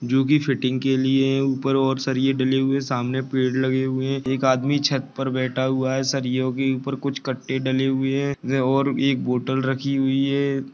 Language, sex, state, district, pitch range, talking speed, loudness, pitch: Hindi, male, Maharashtra, Pune, 130-135 Hz, 200 wpm, -22 LUFS, 135 Hz